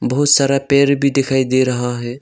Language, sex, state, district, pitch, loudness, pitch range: Hindi, male, Arunachal Pradesh, Longding, 135 Hz, -15 LUFS, 125-140 Hz